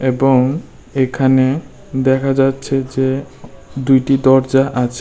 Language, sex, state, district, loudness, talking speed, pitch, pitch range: Bengali, male, Tripura, West Tripura, -15 LUFS, 95 wpm, 135 Hz, 130-135 Hz